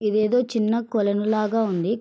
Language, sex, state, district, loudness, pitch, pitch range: Telugu, female, Andhra Pradesh, Srikakulam, -22 LUFS, 215 Hz, 210-225 Hz